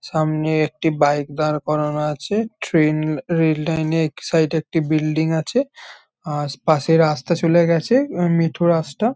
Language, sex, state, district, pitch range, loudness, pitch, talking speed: Bengali, male, West Bengal, Jhargram, 150-170 Hz, -19 LUFS, 160 Hz, 155 wpm